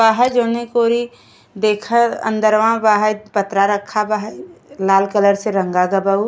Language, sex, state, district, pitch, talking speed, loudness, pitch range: Bhojpuri, female, Uttar Pradesh, Gorakhpur, 215 Hz, 160 wpm, -16 LUFS, 200-230 Hz